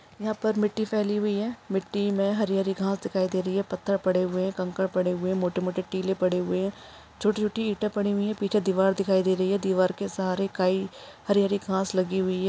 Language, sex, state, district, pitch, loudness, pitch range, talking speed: Hindi, female, Chhattisgarh, Raigarh, 195 Hz, -26 LUFS, 185-205 Hz, 230 wpm